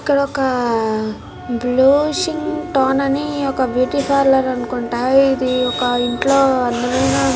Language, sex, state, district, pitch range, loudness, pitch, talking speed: Telugu, female, Andhra Pradesh, Krishna, 245-275 Hz, -17 LUFS, 260 Hz, 100 wpm